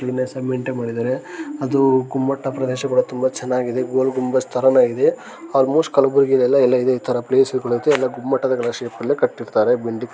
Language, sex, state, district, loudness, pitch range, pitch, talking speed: Kannada, male, Karnataka, Gulbarga, -19 LUFS, 125-135 Hz, 130 Hz, 185 wpm